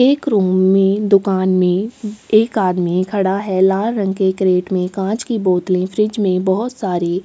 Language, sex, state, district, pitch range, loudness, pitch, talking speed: Hindi, female, Chhattisgarh, Sukma, 185-210 Hz, -16 LUFS, 195 Hz, 175 wpm